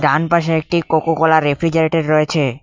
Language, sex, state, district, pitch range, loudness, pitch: Bengali, male, West Bengal, Cooch Behar, 155-165 Hz, -15 LUFS, 160 Hz